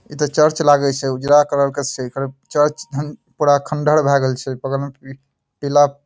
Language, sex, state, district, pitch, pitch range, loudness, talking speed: Maithili, male, Bihar, Madhepura, 140 Hz, 135-150 Hz, -17 LUFS, 210 wpm